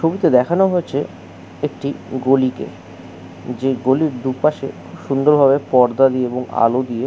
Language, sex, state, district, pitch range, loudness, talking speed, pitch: Bengali, male, West Bengal, Jhargram, 125-140 Hz, -17 LUFS, 135 wpm, 130 Hz